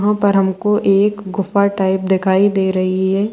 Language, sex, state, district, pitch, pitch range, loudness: Hindi, female, Bihar, Araria, 195 Hz, 190-205 Hz, -15 LUFS